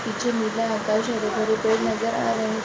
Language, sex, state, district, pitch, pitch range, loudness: Hindi, female, Uttar Pradesh, Jalaun, 220 Hz, 220-230 Hz, -23 LUFS